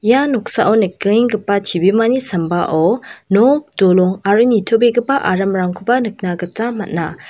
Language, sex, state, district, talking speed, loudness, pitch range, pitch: Garo, female, Meghalaya, West Garo Hills, 105 wpm, -15 LUFS, 185-235 Hz, 210 Hz